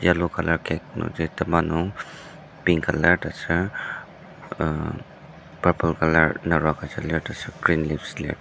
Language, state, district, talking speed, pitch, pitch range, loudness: Ao, Nagaland, Dimapur, 135 wpm, 85 Hz, 80-85 Hz, -24 LUFS